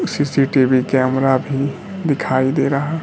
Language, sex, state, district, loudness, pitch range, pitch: Hindi, male, Bihar, Kaimur, -17 LUFS, 130-145 Hz, 135 Hz